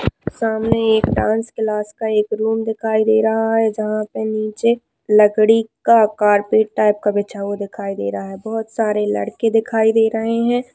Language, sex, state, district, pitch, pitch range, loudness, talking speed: Hindi, female, Chhattisgarh, Raigarh, 220 Hz, 210-225 Hz, -18 LUFS, 175 wpm